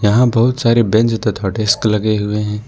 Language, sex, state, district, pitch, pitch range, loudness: Hindi, male, Jharkhand, Ranchi, 110 Hz, 105-115 Hz, -15 LUFS